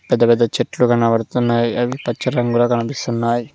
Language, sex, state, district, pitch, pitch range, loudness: Telugu, male, Telangana, Mahabubabad, 120 Hz, 115-120 Hz, -17 LUFS